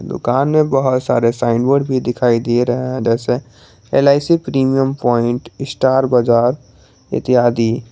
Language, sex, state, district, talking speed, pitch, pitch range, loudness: Hindi, male, Jharkhand, Garhwa, 135 wpm, 125 Hz, 120-135 Hz, -15 LUFS